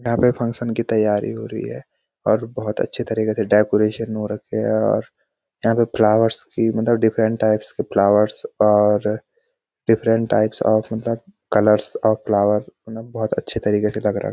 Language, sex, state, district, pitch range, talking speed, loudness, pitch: Hindi, male, Uttarakhand, Uttarkashi, 105-115 Hz, 175 wpm, -19 LUFS, 110 Hz